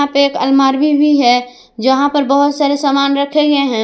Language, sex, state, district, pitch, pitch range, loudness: Hindi, female, Jharkhand, Garhwa, 280 Hz, 265-285 Hz, -13 LUFS